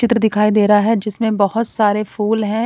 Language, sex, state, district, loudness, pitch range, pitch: Hindi, female, Punjab, Kapurthala, -16 LUFS, 210-225 Hz, 215 Hz